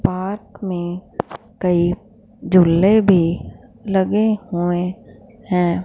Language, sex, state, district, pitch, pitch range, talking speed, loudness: Hindi, female, Punjab, Fazilka, 185 Hz, 175-200 Hz, 80 wpm, -18 LUFS